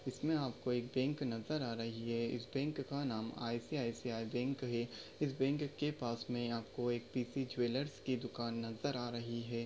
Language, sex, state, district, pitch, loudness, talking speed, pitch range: Hindi, male, Maharashtra, Nagpur, 120 Hz, -40 LUFS, 180 wpm, 115-135 Hz